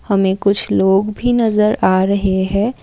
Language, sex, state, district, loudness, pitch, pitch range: Hindi, female, Assam, Kamrup Metropolitan, -15 LUFS, 200 Hz, 190-210 Hz